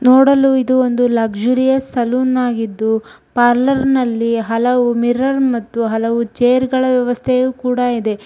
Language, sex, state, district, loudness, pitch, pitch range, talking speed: Kannada, female, Karnataka, Shimoga, -15 LUFS, 245 Hz, 230-255 Hz, 150 wpm